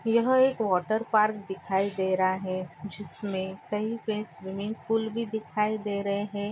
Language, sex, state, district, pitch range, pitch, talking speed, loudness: Hindi, female, Maharashtra, Nagpur, 190-220 Hz, 205 Hz, 165 wpm, -28 LUFS